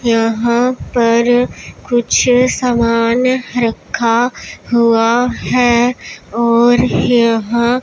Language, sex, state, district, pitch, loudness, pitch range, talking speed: Hindi, female, Punjab, Pathankot, 235 Hz, -13 LUFS, 230-245 Hz, 70 wpm